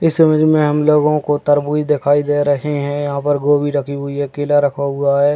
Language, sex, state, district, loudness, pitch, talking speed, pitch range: Hindi, male, Bihar, Muzaffarpur, -16 LUFS, 145 Hz, 225 wpm, 145-150 Hz